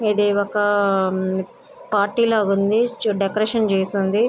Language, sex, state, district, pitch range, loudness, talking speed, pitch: Telugu, female, Andhra Pradesh, Guntur, 195-225 Hz, -20 LUFS, 125 wpm, 205 Hz